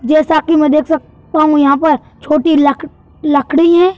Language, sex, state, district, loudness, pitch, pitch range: Hindi, male, Madhya Pradesh, Bhopal, -12 LUFS, 305 Hz, 290-320 Hz